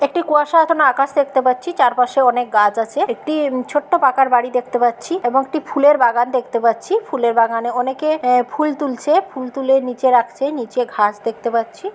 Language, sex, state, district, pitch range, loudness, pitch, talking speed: Bengali, female, West Bengal, Kolkata, 240-295 Hz, -17 LUFS, 260 Hz, 180 wpm